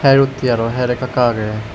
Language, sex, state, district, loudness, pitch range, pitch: Chakma, male, Tripura, West Tripura, -16 LUFS, 115-130 Hz, 125 Hz